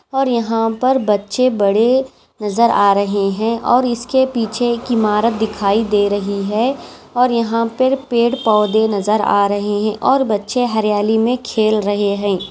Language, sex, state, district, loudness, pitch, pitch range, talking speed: Hindi, female, Maharashtra, Aurangabad, -16 LUFS, 220 Hz, 205-245 Hz, 165 wpm